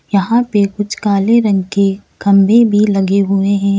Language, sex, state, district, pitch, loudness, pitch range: Hindi, female, Uttar Pradesh, Lalitpur, 200 Hz, -13 LUFS, 195-210 Hz